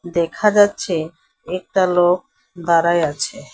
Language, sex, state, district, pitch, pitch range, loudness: Bengali, female, West Bengal, Alipurduar, 175 Hz, 170-185 Hz, -18 LUFS